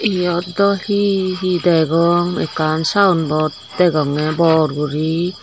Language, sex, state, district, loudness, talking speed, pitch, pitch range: Chakma, female, Tripura, Dhalai, -16 LUFS, 110 wpm, 170 Hz, 155-185 Hz